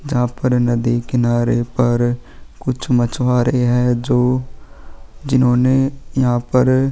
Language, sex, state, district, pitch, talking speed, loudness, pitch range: Hindi, male, Chhattisgarh, Kabirdham, 125 Hz, 105 wpm, -17 LUFS, 120-130 Hz